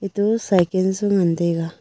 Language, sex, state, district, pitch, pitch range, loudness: Wancho, female, Arunachal Pradesh, Longding, 190 Hz, 170-200 Hz, -19 LUFS